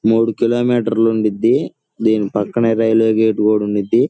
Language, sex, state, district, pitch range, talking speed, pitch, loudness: Telugu, male, Andhra Pradesh, Guntur, 105-115 Hz, 160 wpm, 110 Hz, -16 LUFS